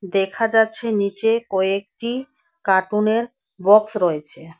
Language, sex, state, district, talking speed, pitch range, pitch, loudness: Bengali, female, West Bengal, Alipurduar, 90 wpm, 190-225 Hz, 210 Hz, -20 LUFS